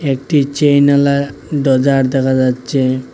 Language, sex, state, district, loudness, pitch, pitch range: Bengali, male, Assam, Hailakandi, -13 LUFS, 135 Hz, 130-140 Hz